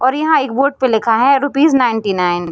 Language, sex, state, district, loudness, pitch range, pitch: Hindi, female, Bihar, Darbhanga, -14 LUFS, 225-280 Hz, 260 Hz